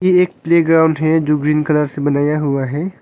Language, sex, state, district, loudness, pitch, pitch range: Hindi, male, Arunachal Pradesh, Longding, -15 LUFS, 150 Hz, 145-165 Hz